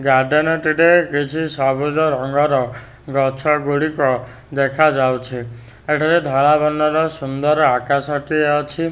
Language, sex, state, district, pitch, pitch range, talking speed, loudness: Odia, male, Odisha, Nuapada, 145 Hz, 135-155 Hz, 100 wpm, -17 LUFS